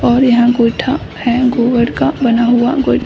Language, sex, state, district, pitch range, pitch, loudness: Hindi, female, Bihar, Samastipur, 240-250 Hz, 240 Hz, -13 LUFS